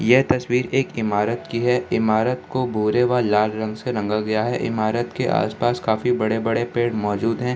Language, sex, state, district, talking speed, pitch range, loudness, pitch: Hindi, male, Bihar, Samastipur, 190 wpm, 110-125 Hz, -21 LUFS, 115 Hz